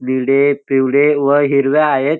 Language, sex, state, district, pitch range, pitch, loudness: Marathi, male, Maharashtra, Dhule, 135-145 Hz, 140 Hz, -13 LUFS